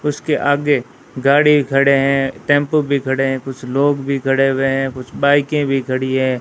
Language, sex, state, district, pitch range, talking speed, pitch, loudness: Hindi, female, Rajasthan, Bikaner, 135-145 Hz, 185 wpm, 135 Hz, -16 LUFS